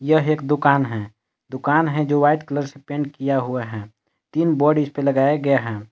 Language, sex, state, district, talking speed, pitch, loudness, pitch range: Hindi, male, Jharkhand, Palamu, 205 wpm, 140 Hz, -20 LUFS, 125-150 Hz